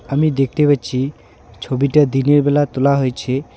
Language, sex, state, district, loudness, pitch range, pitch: Bengali, male, West Bengal, Alipurduar, -16 LUFS, 130-145 Hz, 140 Hz